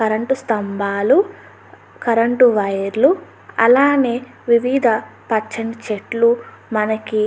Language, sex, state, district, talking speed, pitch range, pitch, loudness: Telugu, female, Andhra Pradesh, Anantapur, 80 wpm, 215-250 Hz, 230 Hz, -17 LUFS